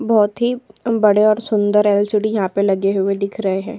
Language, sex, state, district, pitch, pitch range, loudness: Hindi, female, Uttar Pradesh, Hamirpur, 210 Hz, 200-215 Hz, -17 LUFS